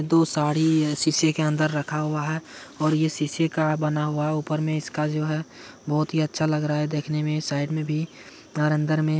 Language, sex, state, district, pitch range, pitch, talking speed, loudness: Hindi, male, Bihar, Madhepura, 150-155 Hz, 155 Hz, 230 wpm, -24 LUFS